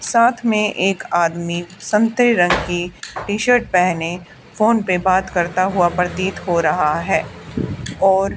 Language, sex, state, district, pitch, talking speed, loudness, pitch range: Hindi, female, Haryana, Charkhi Dadri, 185 Hz, 145 wpm, -18 LUFS, 175-210 Hz